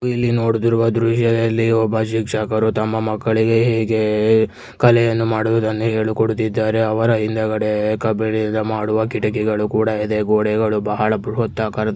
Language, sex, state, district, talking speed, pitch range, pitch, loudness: Kannada, male, Karnataka, Mysore, 115 wpm, 110-115 Hz, 110 Hz, -18 LUFS